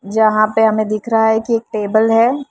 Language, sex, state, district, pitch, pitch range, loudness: Hindi, female, Maharashtra, Mumbai Suburban, 220 Hz, 215-225 Hz, -14 LUFS